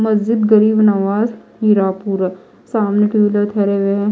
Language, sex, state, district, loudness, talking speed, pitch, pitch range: Hindi, female, Chhattisgarh, Raipur, -15 LUFS, 145 wpm, 210 Hz, 200-215 Hz